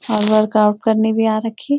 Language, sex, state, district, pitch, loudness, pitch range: Hindi, female, Uttarakhand, Uttarkashi, 220 Hz, -16 LUFS, 215-225 Hz